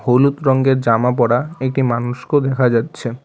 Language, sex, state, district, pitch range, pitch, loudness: Bengali, male, West Bengal, Alipurduar, 120-135 Hz, 130 Hz, -16 LUFS